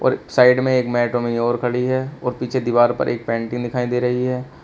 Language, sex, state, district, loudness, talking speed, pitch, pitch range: Hindi, male, Uttar Pradesh, Shamli, -19 LUFS, 235 wpm, 125 Hz, 120-125 Hz